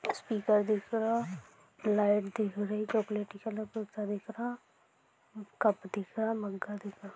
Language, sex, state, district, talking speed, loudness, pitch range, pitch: Hindi, female, Maharashtra, Nagpur, 140 wpm, -33 LUFS, 205-220 Hz, 210 Hz